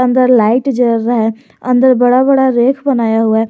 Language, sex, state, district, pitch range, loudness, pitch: Hindi, male, Jharkhand, Garhwa, 230-255 Hz, -11 LUFS, 245 Hz